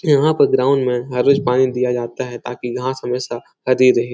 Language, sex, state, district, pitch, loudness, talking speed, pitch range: Hindi, male, Uttar Pradesh, Etah, 125 Hz, -18 LUFS, 215 wpm, 125-130 Hz